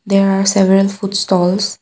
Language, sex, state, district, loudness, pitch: English, female, Assam, Kamrup Metropolitan, -14 LUFS, 195 Hz